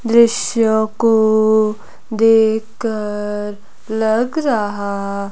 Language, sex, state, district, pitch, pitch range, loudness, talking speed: Hindi, female, Himachal Pradesh, Shimla, 220 Hz, 210-225 Hz, -16 LUFS, 55 wpm